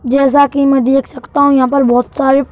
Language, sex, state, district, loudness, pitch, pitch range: Hindi, male, Madhya Pradesh, Bhopal, -11 LUFS, 275 Hz, 265-280 Hz